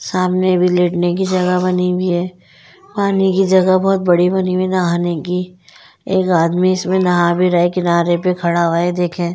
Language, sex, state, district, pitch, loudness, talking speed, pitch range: Hindi, female, Delhi, New Delhi, 180 Hz, -15 LUFS, 205 wpm, 175-185 Hz